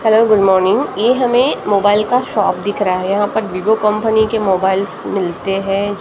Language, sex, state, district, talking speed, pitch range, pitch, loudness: Hindi, female, Maharashtra, Gondia, 190 wpm, 195-220 Hz, 205 Hz, -15 LUFS